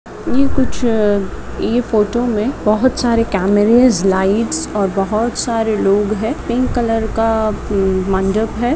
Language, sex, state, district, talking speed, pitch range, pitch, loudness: Marathi, female, Maharashtra, Pune, 130 wpm, 205-235 Hz, 220 Hz, -16 LUFS